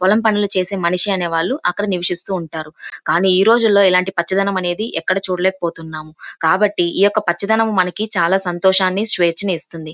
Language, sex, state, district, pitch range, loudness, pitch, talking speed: Telugu, female, Andhra Pradesh, Chittoor, 175-200 Hz, -16 LUFS, 185 Hz, 125 wpm